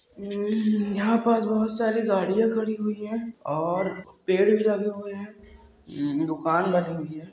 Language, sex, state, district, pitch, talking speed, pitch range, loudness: Hindi, female, Bihar, Saran, 205 Hz, 170 wpm, 180-220 Hz, -25 LUFS